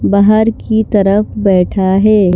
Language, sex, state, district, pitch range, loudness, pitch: Hindi, female, Madhya Pradesh, Bhopal, 195-215 Hz, -11 LUFS, 205 Hz